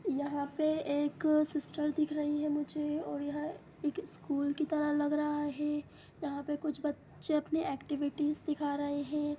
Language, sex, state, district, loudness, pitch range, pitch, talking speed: Hindi, female, Bihar, Sitamarhi, -34 LUFS, 290-305 Hz, 295 Hz, 165 wpm